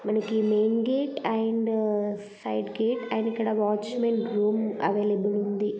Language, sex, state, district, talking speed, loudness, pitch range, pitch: Telugu, female, Andhra Pradesh, Guntur, 135 wpm, -27 LUFS, 205-225 Hz, 215 Hz